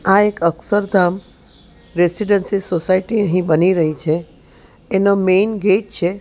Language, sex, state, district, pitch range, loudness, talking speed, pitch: Gujarati, female, Gujarat, Valsad, 175-200 Hz, -17 LUFS, 125 wpm, 185 Hz